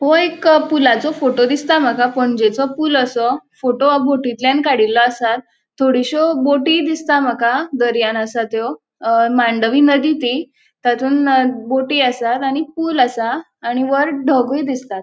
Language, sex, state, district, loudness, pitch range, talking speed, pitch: Konkani, female, Goa, North and South Goa, -15 LUFS, 240-290 Hz, 140 wpm, 265 Hz